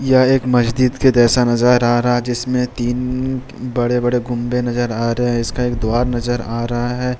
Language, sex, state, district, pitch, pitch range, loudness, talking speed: Hindi, male, Bihar, Jamui, 125 Hz, 120-125 Hz, -17 LUFS, 215 wpm